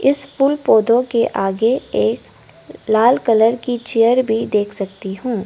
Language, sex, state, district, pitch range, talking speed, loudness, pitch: Hindi, female, Arunachal Pradesh, Lower Dibang Valley, 220-250 Hz, 155 wpm, -16 LUFS, 230 Hz